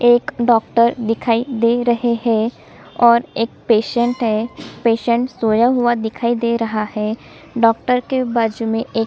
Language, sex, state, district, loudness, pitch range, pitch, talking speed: Hindi, female, Chhattisgarh, Sukma, -17 LUFS, 225-240 Hz, 235 Hz, 145 wpm